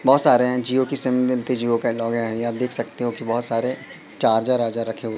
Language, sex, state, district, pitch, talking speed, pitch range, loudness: Hindi, male, Madhya Pradesh, Katni, 120 Hz, 220 wpm, 115-125 Hz, -21 LUFS